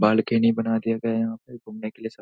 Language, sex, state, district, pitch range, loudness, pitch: Hindi, male, Bihar, Saharsa, 110-115 Hz, -24 LUFS, 115 Hz